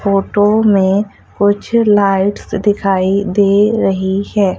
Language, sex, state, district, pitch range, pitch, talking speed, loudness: Hindi, female, Madhya Pradesh, Umaria, 195-205 Hz, 200 Hz, 105 wpm, -13 LUFS